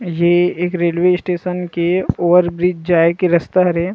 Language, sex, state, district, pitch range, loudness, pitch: Chhattisgarhi, male, Chhattisgarh, Rajnandgaon, 170-180 Hz, -16 LUFS, 175 Hz